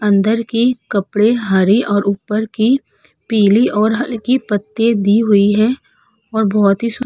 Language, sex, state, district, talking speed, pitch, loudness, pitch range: Hindi, female, Uttar Pradesh, Budaun, 160 wpm, 220 Hz, -15 LUFS, 205-230 Hz